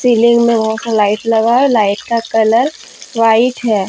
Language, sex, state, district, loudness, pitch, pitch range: Hindi, female, Jharkhand, Deoghar, -13 LUFS, 230 Hz, 220-235 Hz